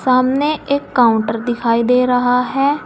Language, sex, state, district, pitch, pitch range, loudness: Hindi, female, Uttar Pradesh, Saharanpur, 250 Hz, 240-275 Hz, -15 LUFS